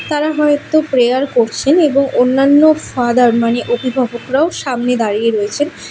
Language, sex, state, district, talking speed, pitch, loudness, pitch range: Bengali, female, West Bengal, Alipurduar, 120 wpm, 255 Hz, -13 LUFS, 240-295 Hz